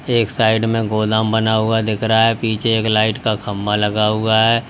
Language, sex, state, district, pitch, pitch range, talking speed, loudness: Hindi, male, Uttar Pradesh, Lalitpur, 110 Hz, 110-115 Hz, 215 wpm, -16 LUFS